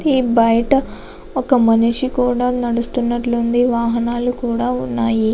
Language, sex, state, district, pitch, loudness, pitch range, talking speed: Telugu, female, Andhra Pradesh, Chittoor, 240 Hz, -17 LUFS, 235-250 Hz, 100 wpm